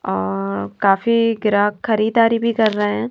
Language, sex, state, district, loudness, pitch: Hindi, female, Maharashtra, Mumbai Suburban, -18 LUFS, 210 Hz